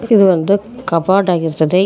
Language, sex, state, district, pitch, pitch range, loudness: Kannada, female, Karnataka, Koppal, 190 Hz, 165-200 Hz, -14 LUFS